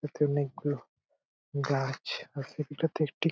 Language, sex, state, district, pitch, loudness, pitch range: Bengali, male, West Bengal, Purulia, 145 Hz, -33 LUFS, 140-150 Hz